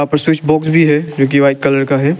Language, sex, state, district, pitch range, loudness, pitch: Hindi, male, Arunachal Pradesh, Lower Dibang Valley, 140-155 Hz, -12 LUFS, 150 Hz